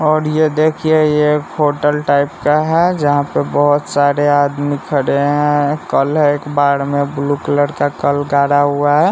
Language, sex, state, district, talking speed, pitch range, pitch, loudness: Hindi, male, Bihar, West Champaran, 190 wpm, 145-150 Hz, 145 Hz, -14 LUFS